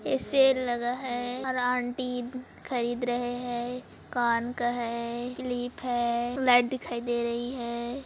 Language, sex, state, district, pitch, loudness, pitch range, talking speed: Hindi, female, Chhattisgarh, Kabirdham, 245 Hz, -29 LUFS, 240-250 Hz, 125 wpm